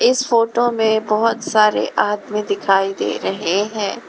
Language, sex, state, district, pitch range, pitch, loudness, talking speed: Hindi, female, Uttar Pradesh, Lalitpur, 205-230 Hz, 215 Hz, -18 LUFS, 145 wpm